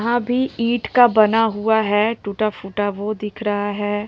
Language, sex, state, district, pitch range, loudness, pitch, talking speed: Hindi, female, Bihar, Jahanabad, 205-230 Hz, -19 LUFS, 215 Hz, 175 wpm